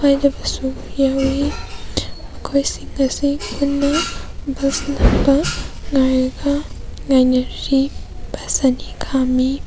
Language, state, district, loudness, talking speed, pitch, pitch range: Manipuri, Manipur, Imphal West, -19 LUFS, 70 wpm, 275 Hz, 265-280 Hz